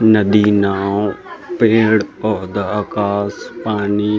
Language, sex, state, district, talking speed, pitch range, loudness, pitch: Chhattisgarhi, male, Chhattisgarh, Rajnandgaon, 100 wpm, 100-110 Hz, -16 LUFS, 105 Hz